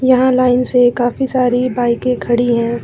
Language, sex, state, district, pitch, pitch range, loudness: Hindi, female, Jharkhand, Ranchi, 250 Hz, 240-255 Hz, -14 LUFS